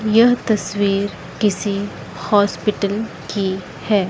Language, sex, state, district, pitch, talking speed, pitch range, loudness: Hindi, female, Chandigarh, Chandigarh, 205 Hz, 90 wpm, 195-215 Hz, -19 LUFS